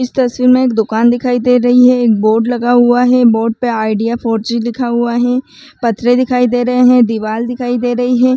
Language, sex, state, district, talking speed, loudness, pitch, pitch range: Chhattisgarhi, female, Chhattisgarh, Raigarh, 235 wpm, -12 LUFS, 245 Hz, 235-250 Hz